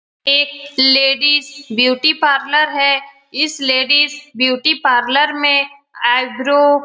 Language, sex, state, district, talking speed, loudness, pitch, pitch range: Hindi, female, Bihar, Lakhisarai, 105 wpm, -14 LUFS, 280 Hz, 265-290 Hz